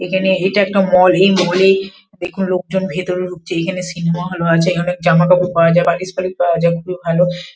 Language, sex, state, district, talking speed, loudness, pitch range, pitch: Bengali, female, West Bengal, Kolkata, 215 wpm, -15 LUFS, 175-190 Hz, 180 Hz